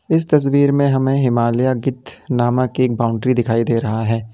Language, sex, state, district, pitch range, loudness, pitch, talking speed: Hindi, male, Uttar Pradesh, Lalitpur, 115-135 Hz, -17 LUFS, 125 Hz, 180 wpm